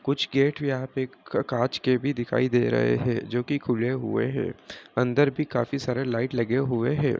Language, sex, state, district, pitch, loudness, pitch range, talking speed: Hindi, male, Bihar, Madhepura, 130 Hz, -26 LUFS, 120-140 Hz, 190 wpm